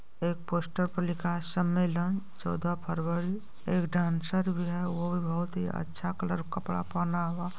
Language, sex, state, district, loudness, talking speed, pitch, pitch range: Hindi, female, Bihar, Madhepura, -31 LUFS, 175 wpm, 175 Hz, 170-180 Hz